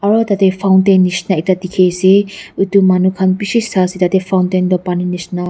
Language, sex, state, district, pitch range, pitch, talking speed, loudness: Nagamese, female, Nagaland, Dimapur, 185-195 Hz, 185 Hz, 165 wpm, -13 LUFS